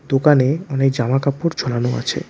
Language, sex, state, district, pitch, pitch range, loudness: Bengali, male, West Bengal, Alipurduar, 135 Hz, 130-145 Hz, -18 LUFS